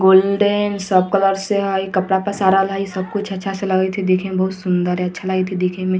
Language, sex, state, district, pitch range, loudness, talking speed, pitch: Hindi, female, Bihar, Vaishali, 185-195 Hz, -18 LUFS, 240 wpm, 190 Hz